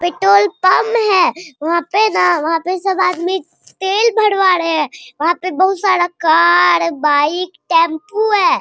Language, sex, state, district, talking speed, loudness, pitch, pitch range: Hindi, female, Bihar, Araria, 145 wpm, -14 LUFS, 360 Hz, 330-390 Hz